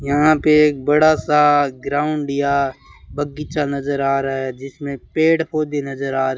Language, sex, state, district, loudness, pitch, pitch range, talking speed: Hindi, male, Rajasthan, Bikaner, -18 LUFS, 145 Hz, 135-150 Hz, 170 wpm